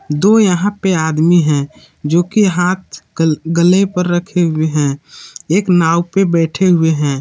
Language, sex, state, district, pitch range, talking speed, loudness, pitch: Hindi, male, Jharkhand, Palamu, 160-185 Hz, 165 wpm, -14 LUFS, 175 Hz